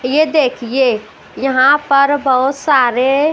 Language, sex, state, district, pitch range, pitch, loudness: Hindi, female, Maharashtra, Washim, 255-285 Hz, 270 Hz, -13 LUFS